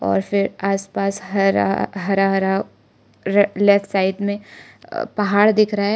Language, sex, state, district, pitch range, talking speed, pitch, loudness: Hindi, male, Arunachal Pradesh, Lower Dibang Valley, 190-200 Hz, 130 wpm, 195 Hz, -19 LUFS